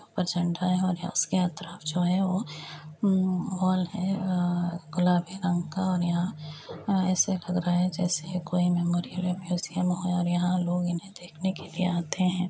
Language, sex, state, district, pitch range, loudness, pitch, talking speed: Hindi, female, Uttar Pradesh, Etah, 175-185 Hz, -28 LUFS, 180 Hz, 180 wpm